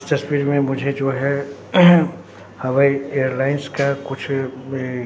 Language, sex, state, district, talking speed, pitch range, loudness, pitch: Hindi, male, Bihar, Katihar, 130 wpm, 135-140 Hz, -19 LUFS, 140 Hz